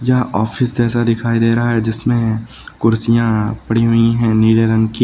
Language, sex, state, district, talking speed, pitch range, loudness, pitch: Hindi, male, Uttar Pradesh, Lucknow, 180 wpm, 110-120 Hz, -15 LUFS, 115 Hz